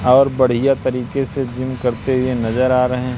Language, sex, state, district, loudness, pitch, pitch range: Hindi, male, Madhya Pradesh, Katni, -17 LUFS, 130 Hz, 125-130 Hz